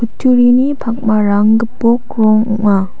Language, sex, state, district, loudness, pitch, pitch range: Garo, female, Meghalaya, South Garo Hills, -12 LUFS, 225 Hz, 215-245 Hz